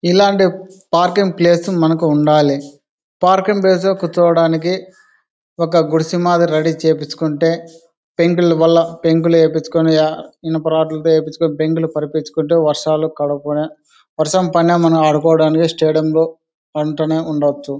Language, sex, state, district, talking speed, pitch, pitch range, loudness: Telugu, male, Andhra Pradesh, Anantapur, 95 wpm, 160 Hz, 155-170 Hz, -15 LUFS